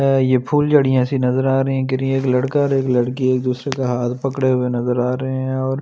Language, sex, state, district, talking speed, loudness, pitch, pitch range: Hindi, male, Delhi, New Delhi, 260 wpm, -18 LUFS, 130 Hz, 125-135 Hz